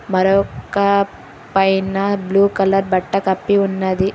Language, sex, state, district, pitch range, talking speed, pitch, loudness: Telugu, female, Telangana, Hyderabad, 190-200 Hz, 100 wpm, 195 Hz, -17 LUFS